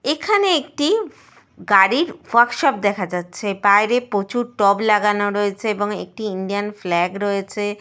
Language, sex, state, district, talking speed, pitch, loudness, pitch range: Bengali, female, Jharkhand, Sahebganj, 40 wpm, 205 Hz, -19 LUFS, 200-240 Hz